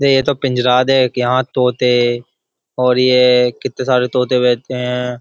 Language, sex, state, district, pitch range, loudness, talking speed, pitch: Hindi, male, Uttar Pradesh, Jyotiba Phule Nagar, 125-130 Hz, -14 LUFS, 150 wpm, 125 Hz